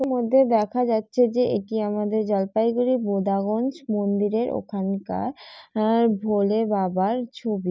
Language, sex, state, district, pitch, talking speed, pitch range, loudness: Bengali, female, West Bengal, Jalpaiguri, 220 Hz, 110 wpm, 205-245 Hz, -23 LUFS